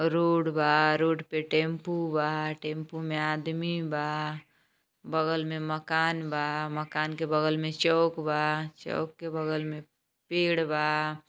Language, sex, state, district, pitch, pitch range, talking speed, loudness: Bhojpuri, female, Uttar Pradesh, Gorakhpur, 155 Hz, 155-160 Hz, 135 wpm, -29 LUFS